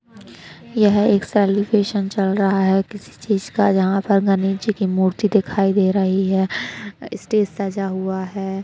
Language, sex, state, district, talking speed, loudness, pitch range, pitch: Hindi, female, Uttar Pradesh, Deoria, 155 wpm, -19 LUFS, 195-205 Hz, 195 Hz